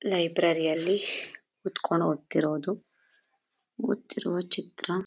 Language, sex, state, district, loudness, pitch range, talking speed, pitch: Kannada, female, Karnataka, Chamarajanagar, -29 LUFS, 160-190 Hz, 70 wpm, 175 Hz